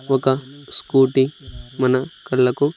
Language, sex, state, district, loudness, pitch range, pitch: Telugu, male, Andhra Pradesh, Sri Satya Sai, -18 LUFS, 130-135 Hz, 130 Hz